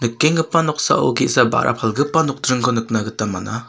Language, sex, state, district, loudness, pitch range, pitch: Garo, male, Meghalaya, South Garo Hills, -18 LUFS, 110-150 Hz, 125 Hz